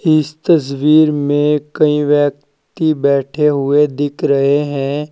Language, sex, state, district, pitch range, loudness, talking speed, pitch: Hindi, male, Uttar Pradesh, Saharanpur, 140-150 Hz, -14 LUFS, 115 wpm, 145 Hz